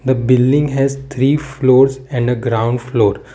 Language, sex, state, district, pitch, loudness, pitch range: English, male, Gujarat, Valsad, 130 Hz, -15 LUFS, 125-135 Hz